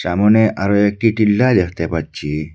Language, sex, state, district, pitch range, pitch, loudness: Bengali, male, Assam, Hailakandi, 85-110 Hz, 100 Hz, -16 LUFS